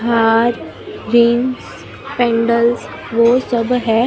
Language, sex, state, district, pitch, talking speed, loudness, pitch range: Hindi, female, Maharashtra, Mumbai Suburban, 235 Hz, 105 wpm, -15 LUFS, 230-245 Hz